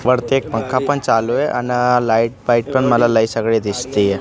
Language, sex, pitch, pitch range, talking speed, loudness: Marathi, male, 120 Hz, 115-130 Hz, 200 wpm, -16 LUFS